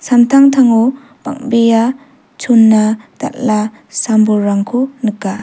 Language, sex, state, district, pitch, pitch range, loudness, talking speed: Garo, female, Meghalaya, South Garo Hills, 235 Hz, 215-260 Hz, -12 LUFS, 55 wpm